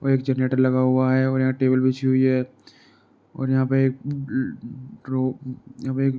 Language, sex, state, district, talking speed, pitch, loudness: Hindi, male, Uttar Pradesh, Jalaun, 155 wpm, 130 Hz, -22 LUFS